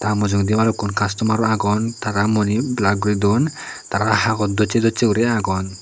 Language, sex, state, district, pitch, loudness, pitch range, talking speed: Chakma, male, Tripura, Unakoti, 105 Hz, -19 LUFS, 100-110 Hz, 165 wpm